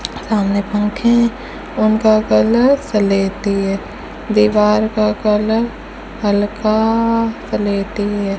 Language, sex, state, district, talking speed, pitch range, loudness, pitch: Hindi, female, Rajasthan, Bikaner, 95 wpm, 205-225 Hz, -16 LUFS, 210 Hz